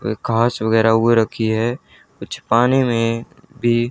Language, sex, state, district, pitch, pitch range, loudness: Hindi, male, Haryana, Charkhi Dadri, 115 Hz, 110-120 Hz, -18 LUFS